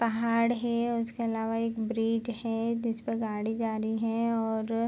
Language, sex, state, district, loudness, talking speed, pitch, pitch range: Hindi, female, Bihar, Supaul, -30 LUFS, 170 wpm, 230 Hz, 225-230 Hz